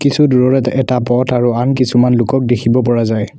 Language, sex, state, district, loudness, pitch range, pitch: Assamese, male, Assam, Kamrup Metropolitan, -13 LUFS, 120-130 Hz, 125 Hz